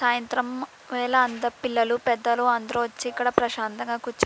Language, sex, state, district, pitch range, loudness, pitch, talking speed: Telugu, female, Andhra Pradesh, Krishna, 235-245 Hz, -25 LUFS, 240 Hz, 155 wpm